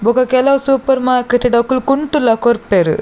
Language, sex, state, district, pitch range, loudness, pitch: Tulu, female, Karnataka, Dakshina Kannada, 235-270 Hz, -13 LUFS, 255 Hz